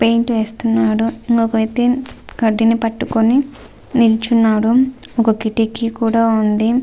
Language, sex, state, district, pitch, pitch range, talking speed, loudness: Telugu, female, Andhra Pradesh, Visakhapatnam, 230 Hz, 225-235 Hz, 95 wpm, -15 LUFS